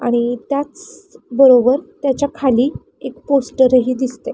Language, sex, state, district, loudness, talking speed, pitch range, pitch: Marathi, female, Maharashtra, Pune, -15 LUFS, 125 wpm, 250-285 Hz, 265 Hz